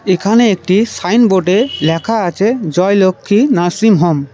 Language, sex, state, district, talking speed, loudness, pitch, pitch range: Bengali, male, West Bengal, Cooch Behar, 110 wpm, -12 LUFS, 195 Hz, 175-225 Hz